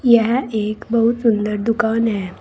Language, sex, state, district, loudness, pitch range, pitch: Hindi, female, Uttar Pradesh, Saharanpur, -18 LUFS, 215-235 Hz, 230 Hz